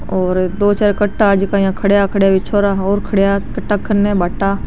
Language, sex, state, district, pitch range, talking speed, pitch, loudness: Marwari, female, Rajasthan, Nagaur, 195-205 Hz, 195 wpm, 200 Hz, -15 LUFS